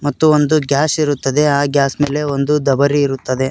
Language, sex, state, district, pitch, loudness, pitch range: Kannada, male, Karnataka, Koppal, 145 Hz, -15 LUFS, 140-150 Hz